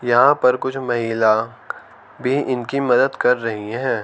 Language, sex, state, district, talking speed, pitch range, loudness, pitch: Hindi, male, Haryana, Charkhi Dadri, 150 wpm, 115-130 Hz, -18 LUFS, 120 Hz